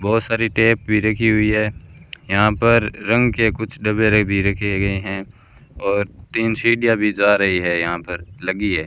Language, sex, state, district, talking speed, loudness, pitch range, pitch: Hindi, male, Rajasthan, Bikaner, 190 wpm, -18 LUFS, 100-115 Hz, 105 Hz